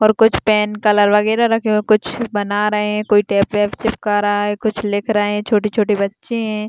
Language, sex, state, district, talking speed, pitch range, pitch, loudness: Hindi, female, Rajasthan, Churu, 235 wpm, 205-215 Hz, 210 Hz, -16 LUFS